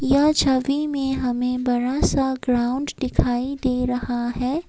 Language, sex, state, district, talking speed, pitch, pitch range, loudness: Hindi, female, Assam, Kamrup Metropolitan, 140 wpm, 260 Hz, 250-275 Hz, -22 LUFS